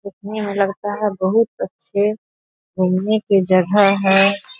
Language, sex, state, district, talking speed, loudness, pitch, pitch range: Hindi, female, Bihar, Saharsa, 130 wpm, -17 LUFS, 200 Hz, 195-210 Hz